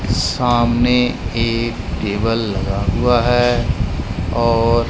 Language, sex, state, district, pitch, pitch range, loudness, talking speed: Hindi, male, Punjab, Kapurthala, 115 Hz, 100-120 Hz, -17 LUFS, 85 wpm